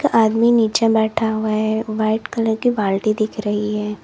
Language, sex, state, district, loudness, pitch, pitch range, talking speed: Hindi, female, Uttar Pradesh, Lalitpur, -18 LUFS, 220 Hz, 215-225 Hz, 195 wpm